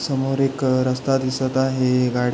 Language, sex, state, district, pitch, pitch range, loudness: Marathi, male, Maharashtra, Pune, 130 Hz, 130-135 Hz, -20 LUFS